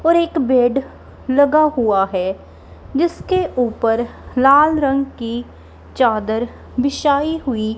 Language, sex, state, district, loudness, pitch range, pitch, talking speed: Hindi, female, Punjab, Kapurthala, -17 LUFS, 230-295 Hz, 265 Hz, 110 wpm